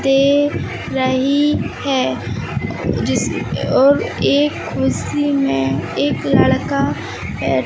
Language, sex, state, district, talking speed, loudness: Hindi, male, Madhya Pradesh, Katni, 85 wpm, -17 LUFS